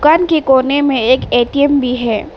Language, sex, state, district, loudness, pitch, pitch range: Hindi, female, Arunachal Pradesh, Papum Pare, -13 LUFS, 270 Hz, 250-285 Hz